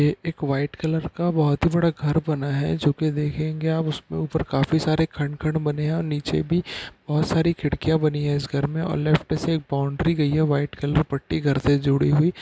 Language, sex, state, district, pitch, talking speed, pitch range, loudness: Hindi, male, Bihar, Saharsa, 150 Hz, 230 wpm, 145-160 Hz, -23 LUFS